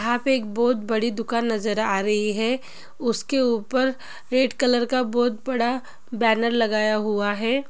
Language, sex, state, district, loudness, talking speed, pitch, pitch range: Hindi, female, Bihar, Gopalganj, -23 LUFS, 165 wpm, 235 Hz, 220-255 Hz